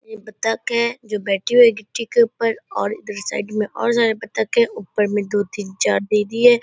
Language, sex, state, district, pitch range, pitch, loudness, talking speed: Hindi, female, Bihar, Purnia, 210-235 Hz, 220 Hz, -19 LUFS, 225 wpm